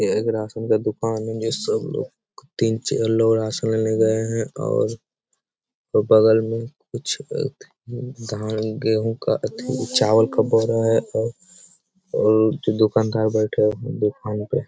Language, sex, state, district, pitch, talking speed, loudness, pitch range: Hindi, male, Bihar, Jamui, 110 Hz, 155 wpm, -21 LUFS, 110-115 Hz